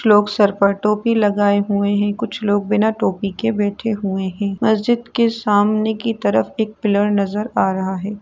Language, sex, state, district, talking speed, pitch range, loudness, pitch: Hindi, female, Uttar Pradesh, Etah, 195 wpm, 200-220 Hz, -18 LUFS, 205 Hz